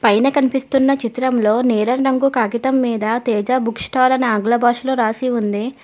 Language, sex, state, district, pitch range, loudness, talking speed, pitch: Telugu, female, Telangana, Hyderabad, 225-260 Hz, -17 LUFS, 155 wpm, 245 Hz